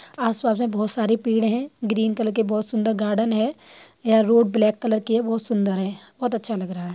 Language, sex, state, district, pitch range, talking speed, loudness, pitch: Hindi, female, Bihar, Muzaffarpur, 215-230 Hz, 235 wpm, -22 LUFS, 225 Hz